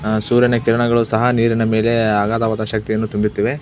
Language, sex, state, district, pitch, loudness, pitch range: Kannada, male, Karnataka, Belgaum, 115 Hz, -17 LUFS, 110-115 Hz